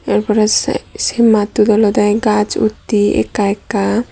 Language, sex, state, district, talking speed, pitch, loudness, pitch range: Chakma, female, Tripura, Dhalai, 130 wpm, 215 Hz, -14 LUFS, 205-215 Hz